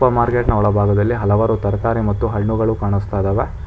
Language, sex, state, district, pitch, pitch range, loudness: Kannada, male, Karnataka, Bangalore, 105 Hz, 100-115 Hz, -17 LUFS